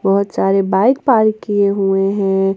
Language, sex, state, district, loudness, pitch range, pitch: Hindi, female, Jharkhand, Ranchi, -15 LUFS, 195-210 Hz, 195 Hz